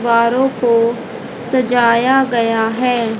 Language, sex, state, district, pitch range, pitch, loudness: Hindi, female, Haryana, Jhajjar, 230-250 Hz, 235 Hz, -14 LUFS